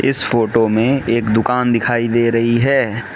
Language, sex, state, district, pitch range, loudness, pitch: Hindi, male, Mizoram, Aizawl, 115-125 Hz, -15 LUFS, 120 Hz